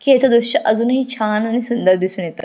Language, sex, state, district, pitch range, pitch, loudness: Marathi, female, Maharashtra, Pune, 190-250 Hz, 235 Hz, -16 LUFS